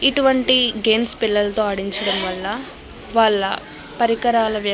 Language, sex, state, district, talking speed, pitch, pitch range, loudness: Telugu, female, Andhra Pradesh, Krishna, 100 wpm, 220 Hz, 200-235 Hz, -18 LUFS